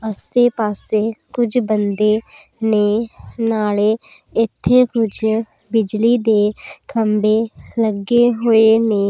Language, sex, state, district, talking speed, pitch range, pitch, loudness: Punjabi, female, Punjab, Pathankot, 90 wpm, 215-230 Hz, 220 Hz, -17 LUFS